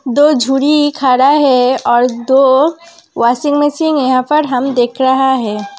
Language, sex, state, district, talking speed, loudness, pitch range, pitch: Hindi, female, Uttar Pradesh, Hamirpur, 135 wpm, -12 LUFS, 255-295 Hz, 265 Hz